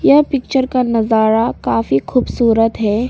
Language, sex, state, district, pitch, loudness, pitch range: Hindi, female, Arunachal Pradesh, Papum Pare, 225 Hz, -15 LUFS, 220-250 Hz